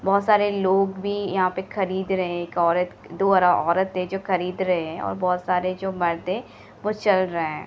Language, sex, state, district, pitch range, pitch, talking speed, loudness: Hindi, female, Bihar, Madhepura, 180-195 Hz, 185 Hz, 210 wpm, -23 LUFS